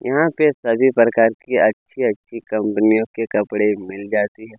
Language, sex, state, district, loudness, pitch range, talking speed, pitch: Hindi, male, Chhattisgarh, Kabirdham, -18 LUFS, 105-115 Hz, 155 wpm, 110 Hz